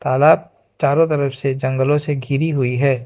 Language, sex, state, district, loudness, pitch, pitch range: Hindi, male, Arunachal Pradesh, Lower Dibang Valley, -17 LUFS, 140 Hz, 130-145 Hz